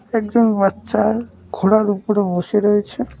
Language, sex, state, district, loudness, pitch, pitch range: Bengali, male, West Bengal, Cooch Behar, -18 LUFS, 210 Hz, 200-220 Hz